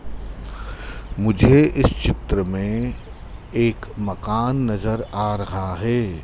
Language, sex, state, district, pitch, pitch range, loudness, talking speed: Hindi, male, Madhya Pradesh, Dhar, 105 Hz, 100-115 Hz, -21 LUFS, 95 wpm